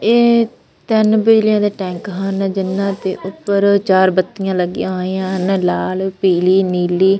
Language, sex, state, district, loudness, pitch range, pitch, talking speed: Punjabi, female, Punjab, Fazilka, -16 LUFS, 185-200 Hz, 195 Hz, 135 wpm